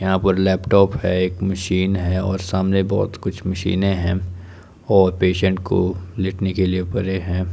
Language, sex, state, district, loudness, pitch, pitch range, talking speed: Hindi, male, Himachal Pradesh, Shimla, -20 LUFS, 95 Hz, 90-95 Hz, 165 wpm